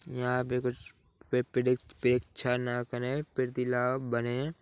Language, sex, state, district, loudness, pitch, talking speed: Hindi, male, Chhattisgarh, Korba, -31 LUFS, 125 Hz, 145 wpm